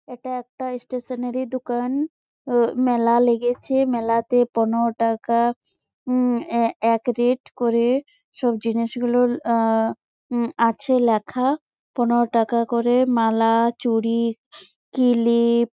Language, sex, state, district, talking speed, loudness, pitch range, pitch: Bengali, female, West Bengal, Jalpaiguri, 105 wpm, -21 LUFS, 230-250 Hz, 240 Hz